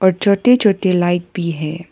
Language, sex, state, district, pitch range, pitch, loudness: Hindi, female, Arunachal Pradesh, Papum Pare, 175-200 Hz, 180 Hz, -16 LUFS